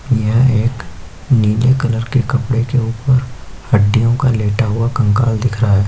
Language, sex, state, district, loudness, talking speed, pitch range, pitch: Hindi, male, Uttar Pradesh, Jyotiba Phule Nagar, -15 LUFS, 165 wpm, 110-125 Hz, 115 Hz